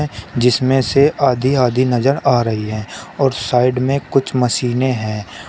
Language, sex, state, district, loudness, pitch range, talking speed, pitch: Hindi, male, Uttar Pradesh, Shamli, -16 LUFS, 120-135 Hz, 155 wpm, 125 Hz